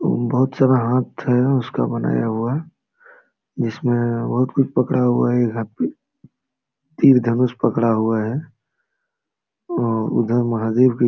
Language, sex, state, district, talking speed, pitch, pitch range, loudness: Hindi, male, Jharkhand, Sahebganj, 145 wpm, 120 Hz, 115-130 Hz, -19 LUFS